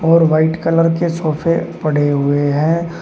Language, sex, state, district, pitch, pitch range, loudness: Hindi, male, Uttar Pradesh, Shamli, 160 Hz, 150-165 Hz, -15 LUFS